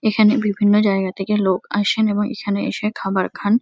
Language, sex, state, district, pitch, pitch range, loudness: Bengali, female, West Bengal, Kolkata, 205 Hz, 200-215 Hz, -19 LUFS